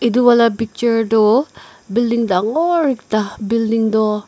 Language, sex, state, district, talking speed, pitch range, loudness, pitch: Nagamese, female, Nagaland, Dimapur, 125 wpm, 215-235 Hz, -16 LUFS, 225 Hz